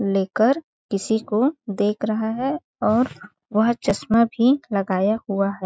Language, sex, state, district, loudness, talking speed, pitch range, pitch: Hindi, female, Chhattisgarh, Balrampur, -22 LUFS, 150 wpm, 200-240 Hz, 220 Hz